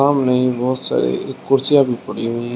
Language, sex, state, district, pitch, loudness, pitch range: Hindi, male, Uttar Pradesh, Shamli, 125 Hz, -18 LUFS, 120-135 Hz